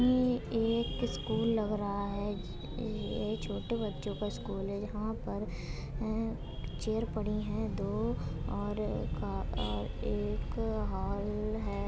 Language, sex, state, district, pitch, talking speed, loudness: Hindi, female, Uttar Pradesh, Etah, 205 Hz, 135 wpm, -35 LUFS